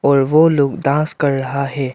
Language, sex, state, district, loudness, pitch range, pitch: Hindi, male, Arunachal Pradesh, Lower Dibang Valley, -16 LUFS, 135-150 Hz, 140 Hz